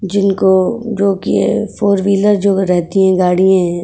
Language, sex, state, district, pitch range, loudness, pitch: Hindi, female, Uttar Pradesh, Etah, 185-200 Hz, -13 LUFS, 195 Hz